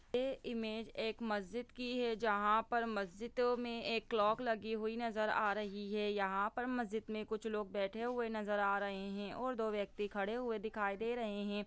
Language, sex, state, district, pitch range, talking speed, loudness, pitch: Hindi, female, Bihar, Lakhisarai, 205-235 Hz, 200 wpm, -39 LUFS, 220 Hz